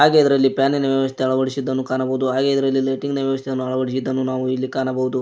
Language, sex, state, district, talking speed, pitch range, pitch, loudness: Kannada, male, Karnataka, Koppal, 170 wpm, 130-135 Hz, 130 Hz, -20 LUFS